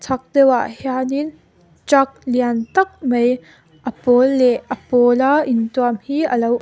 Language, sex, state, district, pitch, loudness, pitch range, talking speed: Mizo, female, Mizoram, Aizawl, 250 Hz, -17 LUFS, 240-275 Hz, 145 wpm